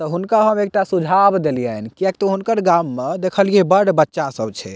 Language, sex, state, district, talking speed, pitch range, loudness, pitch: Maithili, male, Bihar, Purnia, 200 wpm, 155-200 Hz, -17 LUFS, 190 Hz